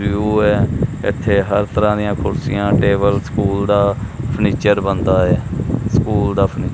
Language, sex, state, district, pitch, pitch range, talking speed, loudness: Punjabi, male, Punjab, Kapurthala, 105 Hz, 100-110 Hz, 140 wpm, -16 LUFS